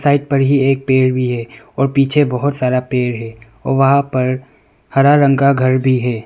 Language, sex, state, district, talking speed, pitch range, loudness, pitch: Hindi, male, Arunachal Pradesh, Longding, 200 wpm, 125-140 Hz, -14 LUFS, 130 Hz